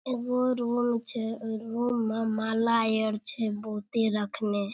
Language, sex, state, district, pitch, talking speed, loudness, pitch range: Maithili, female, Bihar, Darbhanga, 225 Hz, 140 wpm, -29 LUFS, 220-240 Hz